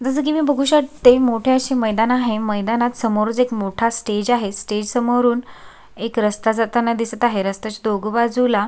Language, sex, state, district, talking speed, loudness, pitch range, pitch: Marathi, female, Maharashtra, Sindhudurg, 180 wpm, -18 LUFS, 215-245 Hz, 230 Hz